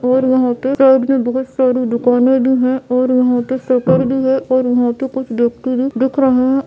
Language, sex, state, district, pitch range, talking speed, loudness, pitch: Hindi, female, Bihar, Purnia, 250-265 Hz, 225 wpm, -14 LUFS, 255 Hz